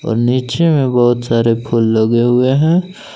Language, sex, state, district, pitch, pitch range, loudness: Hindi, male, Jharkhand, Palamu, 120 Hz, 115-145 Hz, -13 LUFS